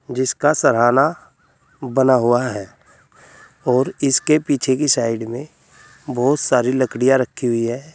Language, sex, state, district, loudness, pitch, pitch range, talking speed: Hindi, male, Uttar Pradesh, Saharanpur, -18 LUFS, 130 Hz, 120-140 Hz, 130 wpm